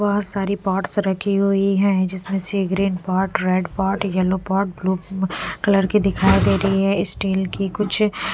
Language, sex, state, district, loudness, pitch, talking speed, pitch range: Hindi, female, Punjab, Pathankot, -20 LUFS, 195 Hz, 180 wpm, 190-200 Hz